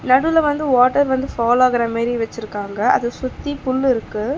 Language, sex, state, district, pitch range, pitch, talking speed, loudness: Tamil, female, Tamil Nadu, Chennai, 230-270 Hz, 255 Hz, 165 wpm, -18 LUFS